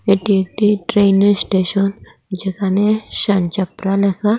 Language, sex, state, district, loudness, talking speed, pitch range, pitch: Bengali, female, Assam, Hailakandi, -16 LUFS, 110 wpm, 190-205 Hz, 200 Hz